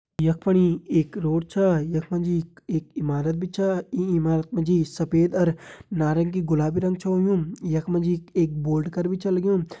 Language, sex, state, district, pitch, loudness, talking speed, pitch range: Hindi, male, Uttarakhand, Tehri Garhwal, 170 Hz, -24 LUFS, 195 wpm, 160-185 Hz